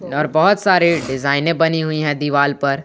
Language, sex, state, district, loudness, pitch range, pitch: Hindi, male, Jharkhand, Garhwa, -16 LUFS, 140-165 Hz, 150 Hz